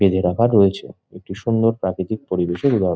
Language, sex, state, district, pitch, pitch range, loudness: Bengali, male, West Bengal, Jhargram, 100 Hz, 95-115 Hz, -19 LUFS